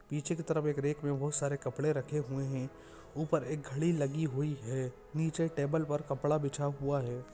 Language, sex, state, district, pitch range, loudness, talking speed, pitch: Hindi, male, Chhattisgarh, Bastar, 135-155 Hz, -34 LUFS, 205 wpm, 145 Hz